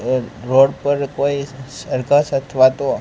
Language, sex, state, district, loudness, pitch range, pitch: Gujarati, male, Gujarat, Gandhinagar, -17 LUFS, 130-140 Hz, 135 Hz